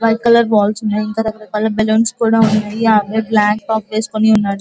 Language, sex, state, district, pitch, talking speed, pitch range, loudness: Telugu, female, Andhra Pradesh, Guntur, 220 Hz, 195 wpm, 215-220 Hz, -15 LUFS